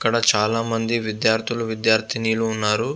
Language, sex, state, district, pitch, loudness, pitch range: Telugu, male, Andhra Pradesh, Visakhapatnam, 115 Hz, -21 LUFS, 110-115 Hz